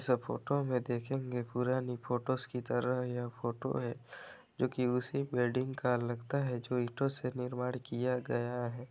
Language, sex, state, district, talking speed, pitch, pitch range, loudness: Hindi, male, Chhattisgarh, Balrampur, 175 wpm, 125 Hz, 120-130 Hz, -36 LUFS